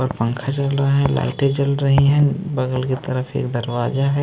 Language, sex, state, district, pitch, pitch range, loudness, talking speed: Hindi, male, Maharashtra, Mumbai Suburban, 135 Hz, 130-140 Hz, -19 LUFS, 200 wpm